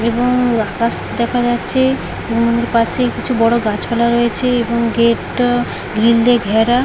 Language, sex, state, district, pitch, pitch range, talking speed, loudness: Bengali, female, West Bengal, Paschim Medinipur, 235 Hz, 230-245 Hz, 150 wpm, -15 LUFS